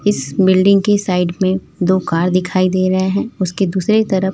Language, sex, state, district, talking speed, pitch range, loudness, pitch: Hindi, female, Chhattisgarh, Raipur, 195 wpm, 185-200 Hz, -15 LUFS, 185 Hz